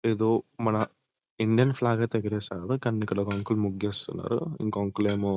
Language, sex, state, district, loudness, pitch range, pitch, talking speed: Telugu, male, Telangana, Nalgonda, -28 LUFS, 100-115 Hz, 110 Hz, 165 wpm